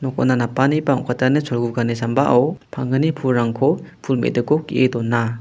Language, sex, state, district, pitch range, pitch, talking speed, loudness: Garo, male, Meghalaya, West Garo Hills, 120-140 Hz, 130 Hz, 135 wpm, -19 LUFS